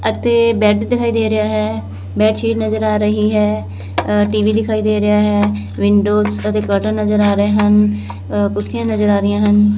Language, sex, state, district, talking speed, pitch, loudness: Punjabi, female, Punjab, Fazilka, 185 wpm, 210 Hz, -15 LUFS